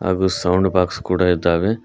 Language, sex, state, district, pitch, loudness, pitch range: Kannada, male, Karnataka, Koppal, 90 Hz, -18 LUFS, 90-95 Hz